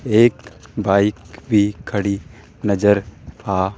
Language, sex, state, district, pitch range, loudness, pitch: Hindi, male, Rajasthan, Jaipur, 100-110 Hz, -19 LUFS, 100 Hz